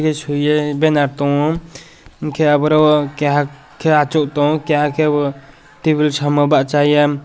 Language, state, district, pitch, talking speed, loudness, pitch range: Kokborok, Tripura, West Tripura, 150 Hz, 115 wpm, -16 LUFS, 145-155 Hz